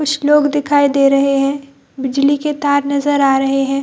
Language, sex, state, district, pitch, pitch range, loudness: Hindi, female, Bihar, Jahanabad, 280 Hz, 275-290 Hz, -14 LUFS